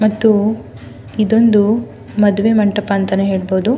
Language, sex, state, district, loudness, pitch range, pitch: Kannada, female, Karnataka, Mysore, -14 LUFS, 195-220 Hz, 210 Hz